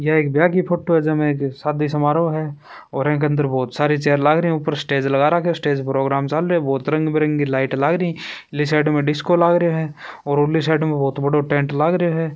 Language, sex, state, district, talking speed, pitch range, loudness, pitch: Hindi, male, Rajasthan, Churu, 260 wpm, 145-160 Hz, -19 LUFS, 150 Hz